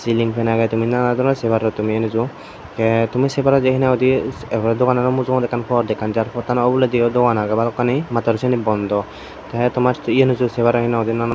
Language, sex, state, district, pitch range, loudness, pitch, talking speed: Chakma, male, Tripura, Dhalai, 115-125 Hz, -18 LUFS, 120 Hz, 205 wpm